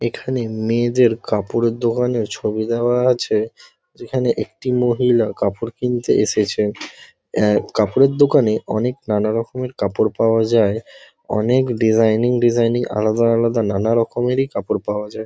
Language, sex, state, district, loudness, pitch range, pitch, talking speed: Bengali, male, West Bengal, Kolkata, -18 LUFS, 110-125 Hz, 115 Hz, 120 wpm